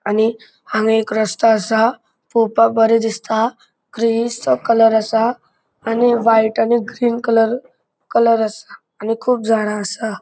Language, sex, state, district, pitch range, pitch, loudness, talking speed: Konkani, male, Goa, North and South Goa, 220-230 Hz, 225 Hz, -16 LUFS, 130 wpm